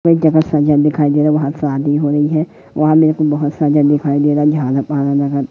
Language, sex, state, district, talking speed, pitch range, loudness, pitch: Hindi, male, Madhya Pradesh, Katni, 205 wpm, 145-155 Hz, -14 LUFS, 150 Hz